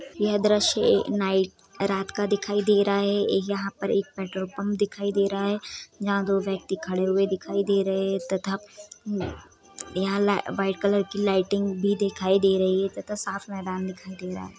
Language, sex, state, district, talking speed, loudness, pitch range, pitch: Hindi, female, Bihar, Sitamarhi, 190 wpm, -25 LUFS, 190-200 Hz, 195 Hz